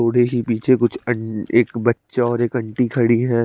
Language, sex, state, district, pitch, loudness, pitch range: Hindi, male, Chandigarh, Chandigarh, 120 Hz, -19 LUFS, 115-120 Hz